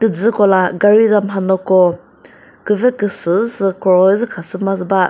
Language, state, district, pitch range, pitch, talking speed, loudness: Chakhesang, Nagaland, Dimapur, 185-210 Hz, 195 Hz, 155 wpm, -14 LUFS